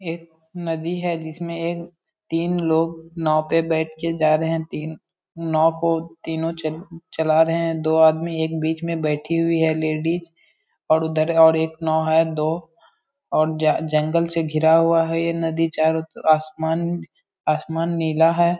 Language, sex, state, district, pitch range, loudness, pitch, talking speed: Hindi, male, Bihar, Purnia, 160-165 Hz, -21 LUFS, 165 Hz, 165 wpm